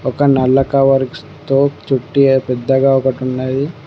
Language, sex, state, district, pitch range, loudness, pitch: Telugu, male, Telangana, Mahabubabad, 130-140 Hz, -14 LUFS, 135 Hz